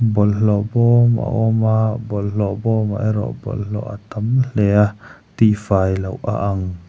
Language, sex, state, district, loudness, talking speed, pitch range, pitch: Mizo, male, Mizoram, Aizawl, -18 LUFS, 165 wpm, 105-115 Hz, 105 Hz